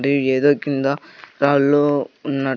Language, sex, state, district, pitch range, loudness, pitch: Telugu, male, Andhra Pradesh, Sri Satya Sai, 135-145 Hz, -18 LUFS, 140 Hz